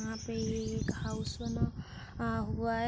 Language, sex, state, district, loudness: Hindi, female, Uttar Pradesh, Hamirpur, -36 LUFS